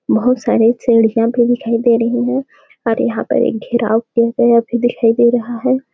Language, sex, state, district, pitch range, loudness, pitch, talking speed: Hindi, female, Chhattisgarh, Sarguja, 230-245 Hz, -15 LUFS, 240 Hz, 190 wpm